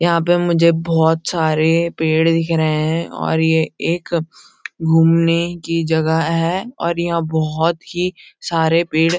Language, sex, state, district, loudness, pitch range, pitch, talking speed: Hindi, male, Uttarakhand, Uttarkashi, -17 LUFS, 160-170 Hz, 165 Hz, 150 wpm